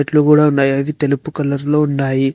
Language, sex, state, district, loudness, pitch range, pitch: Telugu, male, Telangana, Hyderabad, -15 LUFS, 140-150 Hz, 145 Hz